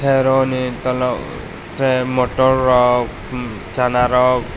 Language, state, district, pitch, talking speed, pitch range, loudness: Kokborok, Tripura, West Tripura, 125 Hz, 120 wpm, 125-130 Hz, -17 LUFS